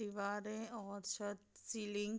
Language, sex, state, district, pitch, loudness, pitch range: Hindi, female, Bihar, Madhepura, 205 Hz, -44 LUFS, 205-215 Hz